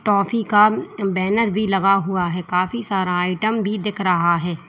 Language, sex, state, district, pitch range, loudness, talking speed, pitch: Hindi, female, Uttar Pradesh, Lalitpur, 180-210 Hz, -19 LUFS, 180 wpm, 195 Hz